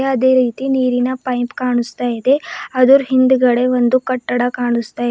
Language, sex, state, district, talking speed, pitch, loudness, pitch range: Kannada, female, Karnataka, Bidar, 140 wpm, 250 Hz, -15 LUFS, 245-260 Hz